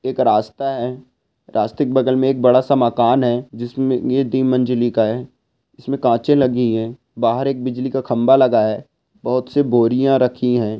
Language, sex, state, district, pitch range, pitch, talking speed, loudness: Hindi, male, Andhra Pradesh, Guntur, 120-130 Hz, 125 Hz, 185 wpm, -17 LUFS